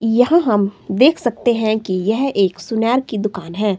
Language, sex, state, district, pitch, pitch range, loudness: Hindi, female, Himachal Pradesh, Shimla, 220 Hz, 200-245 Hz, -17 LUFS